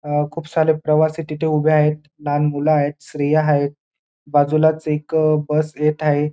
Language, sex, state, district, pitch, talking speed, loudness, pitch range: Marathi, male, Maharashtra, Dhule, 150 Hz, 160 wpm, -18 LUFS, 150-155 Hz